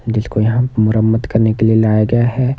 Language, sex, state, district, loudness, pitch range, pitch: Hindi, male, Himachal Pradesh, Shimla, -14 LUFS, 110-120 Hz, 110 Hz